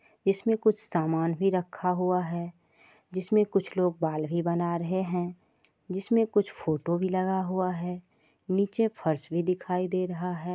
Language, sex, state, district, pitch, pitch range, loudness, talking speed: Maithili, female, Bihar, Supaul, 180 Hz, 170-190 Hz, -29 LUFS, 165 wpm